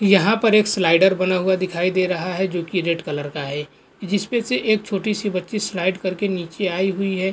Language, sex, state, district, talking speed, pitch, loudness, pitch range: Hindi, male, Goa, North and South Goa, 235 wpm, 190 Hz, -20 LUFS, 180-200 Hz